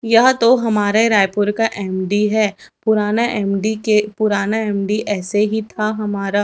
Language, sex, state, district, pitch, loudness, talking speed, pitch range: Hindi, female, Chhattisgarh, Raipur, 210 Hz, -17 LUFS, 150 wpm, 205-220 Hz